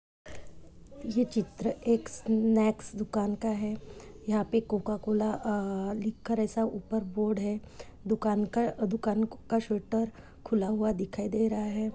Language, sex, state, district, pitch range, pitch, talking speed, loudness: Hindi, female, Goa, North and South Goa, 210-225 Hz, 215 Hz, 140 wpm, -31 LUFS